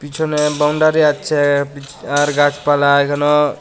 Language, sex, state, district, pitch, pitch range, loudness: Bengali, male, Tripura, West Tripura, 145 Hz, 145-150 Hz, -15 LUFS